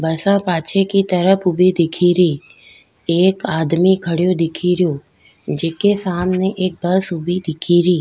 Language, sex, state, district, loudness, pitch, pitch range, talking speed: Rajasthani, female, Rajasthan, Nagaur, -16 LUFS, 180 Hz, 165-185 Hz, 120 wpm